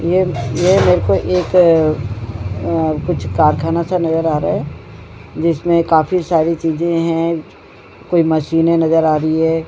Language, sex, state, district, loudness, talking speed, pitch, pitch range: Hindi, female, Uttarakhand, Tehri Garhwal, -15 LUFS, 135 wpm, 160 Hz, 150-170 Hz